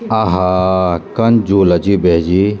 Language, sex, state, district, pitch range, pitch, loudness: Garhwali, male, Uttarakhand, Tehri Garhwal, 90-105 Hz, 95 Hz, -13 LUFS